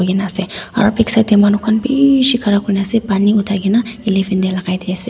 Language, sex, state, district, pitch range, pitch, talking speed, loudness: Nagamese, female, Nagaland, Dimapur, 195-225 Hz, 205 Hz, 245 wpm, -14 LUFS